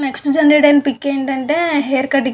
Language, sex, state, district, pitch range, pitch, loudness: Telugu, female, Andhra Pradesh, Visakhapatnam, 270-295 Hz, 280 Hz, -14 LUFS